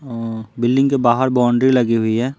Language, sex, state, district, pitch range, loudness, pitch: Hindi, male, Bihar, Patna, 115-130 Hz, -17 LUFS, 120 Hz